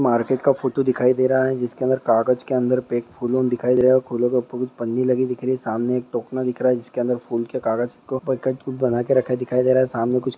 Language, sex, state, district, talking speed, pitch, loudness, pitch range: Hindi, male, Andhra Pradesh, Visakhapatnam, 285 wpm, 125 Hz, -21 LUFS, 120-130 Hz